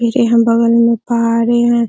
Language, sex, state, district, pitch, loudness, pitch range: Hindi, female, Bihar, Araria, 235 Hz, -12 LUFS, 230-235 Hz